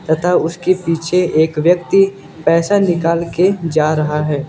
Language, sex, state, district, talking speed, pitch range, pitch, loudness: Hindi, male, Uttar Pradesh, Lucknow, 145 wpm, 160-180 Hz, 170 Hz, -15 LUFS